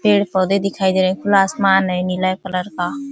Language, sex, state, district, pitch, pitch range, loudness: Hindi, female, Uttar Pradesh, Ghazipur, 190 Hz, 185-200 Hz, -17 LUFS